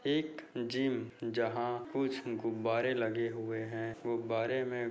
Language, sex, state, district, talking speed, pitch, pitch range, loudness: Hindi, male, Bihar, Bhagalpur, 135 wpm, 120 Hz, 115-130 Hz, -36 LUFS